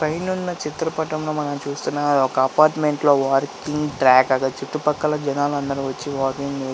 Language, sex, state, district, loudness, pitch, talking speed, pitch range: Telugu, male, Andhra Pradesh, Visakhapatnam, -21 LUFS, 145 Hz, 150 wpm, 135-155 Hz